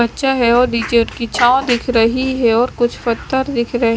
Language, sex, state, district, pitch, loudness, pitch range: Hindi, female, Chandigarh, Chandigarh, 240 Hz, -15 LUFS, 235-255 Hz